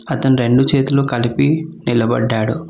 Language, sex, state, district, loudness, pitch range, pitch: Telugu, male, Telangana, Hyderabad, -16 LUFS, 120-140 Hz, 135 Hz